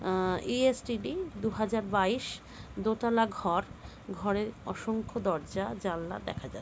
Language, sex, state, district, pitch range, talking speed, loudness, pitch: Bengali, female, West Bengal, Dakshin Dinajpur, 195-230 Hz, 120 wpm, -32 LUFS, 220 Hz